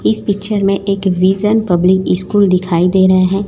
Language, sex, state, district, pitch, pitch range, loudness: Hindi, female, Chhattisgarh, Raipur, 190 Hz, 185-205 Hz, -13 LUFS